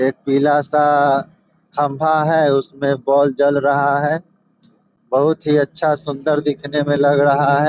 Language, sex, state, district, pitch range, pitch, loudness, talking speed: Hindi, male, Bihar, Begusarai, 140-155 Hz, 145 Hz, -16 LUFS, 140 wpm